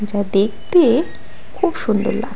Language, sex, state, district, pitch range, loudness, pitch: Bengali, female, West Bengal, Alipurduar, 205-255 Hz, -17 LUFS, 215 Hz